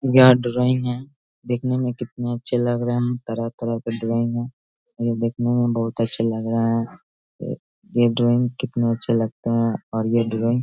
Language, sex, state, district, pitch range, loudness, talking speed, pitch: Hindi, male, Bihar, Sitamarhi, 115-125 Hz, -22 LUFS, 180 wpm, 120 Hz